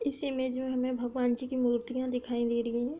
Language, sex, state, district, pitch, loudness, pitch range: Hindi, female, Uttar Pradesh, Hamirpur, 250 Hz, -31 LUFS, 240-260 Hz